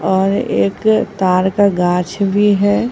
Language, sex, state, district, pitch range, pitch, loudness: Hindi, female, Bihar, Katihar, 185-205 Hz, 200 Hz, -14 LUFS